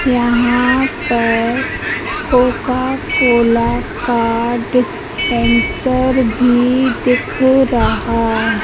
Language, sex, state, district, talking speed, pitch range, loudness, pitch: Hindi, female, Madhya Pradesh, Katni, 65 wpm, 235-260 Hz, -14 LUFS, 245 Hz